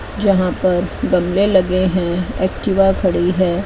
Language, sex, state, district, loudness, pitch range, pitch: Hindi, female, Chandigarh, Chandigarh, -16 LUFS, 180-195 Hz, 185 Hz